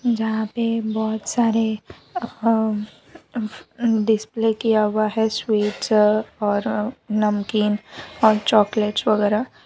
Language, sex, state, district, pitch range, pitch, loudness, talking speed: Hindi, female, Gujarat, Valsad, 210-225 Hz, 220 Hz, -21 LUFS, 100 wpm